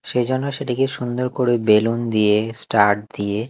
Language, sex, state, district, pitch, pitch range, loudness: Bengali, male, Chhattisgarh, Raipur, 115 Hz, 105-125 Hz, -19 LUFS